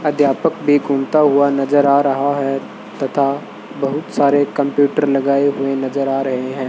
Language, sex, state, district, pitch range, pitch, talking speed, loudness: Hindi, male, Rajasthan, Bikaner, 135-145 Hz, 140 Hz, 160 wpm, -16 LUFS